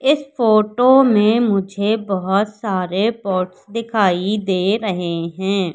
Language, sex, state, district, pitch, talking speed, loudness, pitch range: Hindi, female, Madhya Pradesh, Katni, 200 Hz, 115 wpm, -17 LUFS, 190-225 Hz